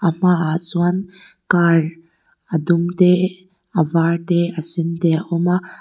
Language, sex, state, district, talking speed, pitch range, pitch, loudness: Mizo, female, Mizoram, Aizawl, 165 wpm, 165-180 Hz, 170 Hz, -18 LUFS